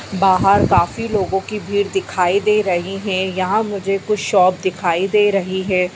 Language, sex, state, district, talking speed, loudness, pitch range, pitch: Hindi, female, Bihar, Bhagalpur, 170 wpm, -17 LUFS, 185-205 Hz, 195 Hz